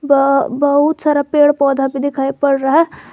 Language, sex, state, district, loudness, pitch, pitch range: Hindi, female, Jharkhand, Garhwa, -14 LUFS, 285 Hz, 275-295 Hz